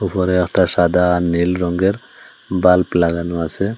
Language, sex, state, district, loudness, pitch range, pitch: Bengali, male, Assam, Hailakandi, -16 LUFS, 85-95 Hz, 90 Hz